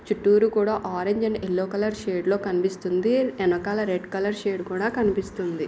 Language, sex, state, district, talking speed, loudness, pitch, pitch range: Telugu, female, Karnataka, Bellary, 150 wpm, -24 LUFS, 200 Hz, 185-210 Hz